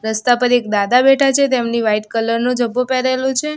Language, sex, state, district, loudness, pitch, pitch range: Gujarati, female, Gujarat, Gandhinagar, -15 LUFS, 245 Hz, 230-260 Hz